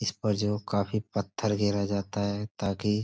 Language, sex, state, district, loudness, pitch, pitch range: Hindi, male, Uttar Pradesh, Budaun, -30 LUFS, 105 Hz, 100-105 Hz